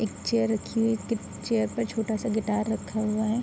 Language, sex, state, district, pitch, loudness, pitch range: Hindi, female, Bihar, Araria, 220 Hz, -28 LUFS, 220-230 Hz